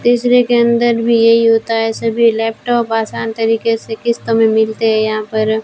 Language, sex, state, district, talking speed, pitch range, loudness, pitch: Hindi, female, Rajasthan, Bikaner, 190 wpm, 225-235 Hz, -14 LUFS, 225 Hz